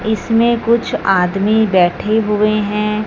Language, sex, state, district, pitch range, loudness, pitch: Hindi, female, Punjab, Fazilka, 205-220 Hz, -14 LUFS, 215 Hz